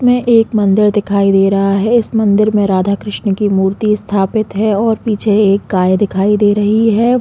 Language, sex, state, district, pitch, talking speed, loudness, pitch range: Hindi, female, Chhattisgarh, Balrampur, 205 Hz, 200 wpm, -12 LUFS, 195-220 Hz